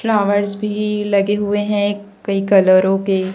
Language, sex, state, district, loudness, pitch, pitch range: Hindi, female, Chhattisgarh, Raipur, -16 LUFS, 205 Hz, 195-205 Hz